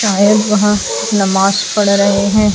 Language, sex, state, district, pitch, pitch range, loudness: Hindi, female, Chhattisgarh, Raipur, 205 Hz, 200-210 Hz, -12 LUFS